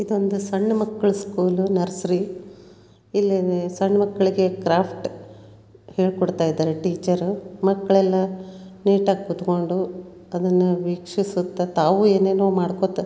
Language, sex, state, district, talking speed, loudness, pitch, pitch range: Kannada, female, Karnataka, Dharwad, 100 wpm, -21 LUFS, 185 Hz, 180-195 Hz